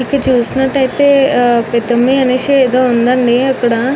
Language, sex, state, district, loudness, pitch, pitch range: Telugu, female, Telangana, Nalgonda, -11 LUFS, 255 Hz, 240-265 Hz